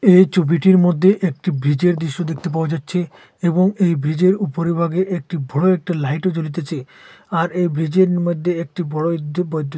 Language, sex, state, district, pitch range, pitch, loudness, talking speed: Bengali, male, Assam, Hailakandi, 160-180 Hz, 170 Hz, -18 LUFS, 170 wpm